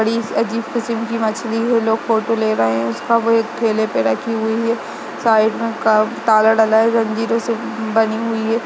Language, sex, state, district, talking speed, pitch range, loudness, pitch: Hindi, female, Uttarakhand, Uttarkashi, 200 wpm, 220-230 Hz, -17 LUFS, 225 Hz